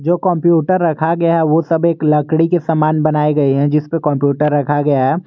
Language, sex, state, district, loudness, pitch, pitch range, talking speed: Hindi, male, Jharkhand, Garhwa, -14 LUFS, 155 Hz, 150-165 Hz, 230 wpm